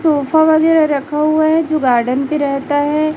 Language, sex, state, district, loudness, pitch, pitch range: Hindi, female, Chhattisgarh, Raipur, -14 LUFS, 300 Hz, 285-315 Hz